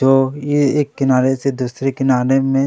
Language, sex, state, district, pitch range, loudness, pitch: Hindi, male, Chhattisgarh, Kabirdham, 130-135 Hz, -16 LUFS, 135 Hz